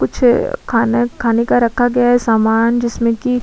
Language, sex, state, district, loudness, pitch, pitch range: Hindi, female, Uttar Pradesh, Budaun, -14 LUFS, 235 Hz, 230-245 Hz